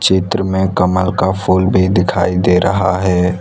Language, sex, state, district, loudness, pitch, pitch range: Hindi, male, Gujarat, Valsad, -14 LUFS, 95 Hz, 90-95 Hz